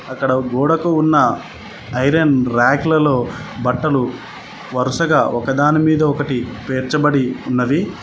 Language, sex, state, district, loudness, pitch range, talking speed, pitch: Telugu, male, Telangana, Mahabubabad, -16 LUFS, 125-155 Hz, 80 wpm, 135 Hz